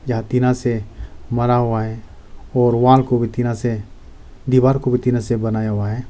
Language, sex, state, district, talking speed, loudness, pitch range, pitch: Hindi, male, Arunachal Pradesh, Lower Dibang Valley, 185 wpm, -18 LUFS, 110-125 Hz, 120 Hz